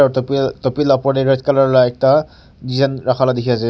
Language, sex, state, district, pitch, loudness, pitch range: Nagamese, male, Nagaland, Kohima, 135 Hz, -15 LUFS, 130-135 Hz